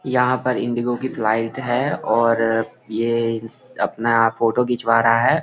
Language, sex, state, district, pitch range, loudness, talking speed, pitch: Hindi, male, Bihar, Gopalganj, 115-125 Hz, -20 LUFS, 145 wpm, 115 Hz